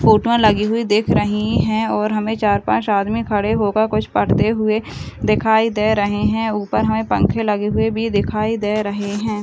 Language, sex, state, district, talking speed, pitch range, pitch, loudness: Hindi, female, Bihar, Madhepura, 195 wpm, 210-220 Hz, 215 Hz, -18 LUFS